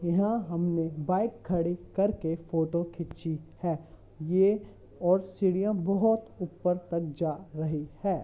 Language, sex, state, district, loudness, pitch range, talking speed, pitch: Hindi, male, Uttar Pradesh, Hamirpur, -30 LUFS, 165-195 Hz, 125 wpm, 175 Hz